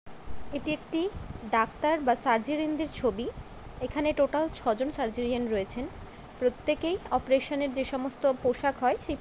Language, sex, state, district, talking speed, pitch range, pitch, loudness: Bengali, female, West Bengal, Dakshin Dinajpur, 115 wpm, 250-300 Hz, 275 Hz, -29 LUFS